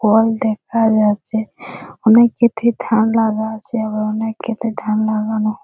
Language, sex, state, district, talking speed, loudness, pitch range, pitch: Bengali, female, West Bengal, Purulia, 150 wpm, -17 LUFS, 215-225 Hz, 220 Hz